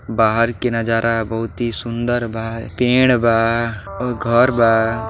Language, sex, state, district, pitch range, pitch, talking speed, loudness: Bhojpuri, male, Uttar Pradesh, Deoria, 115-120 Hz, 115 Hz, 140 wpm, -17 LUFS